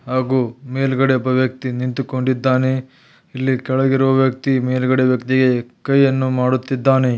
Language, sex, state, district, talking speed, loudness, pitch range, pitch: Kannada, male, Karnataka, Belgaum, 110 wpm, -17 LUFS, 130-135 Hz, 130 Hz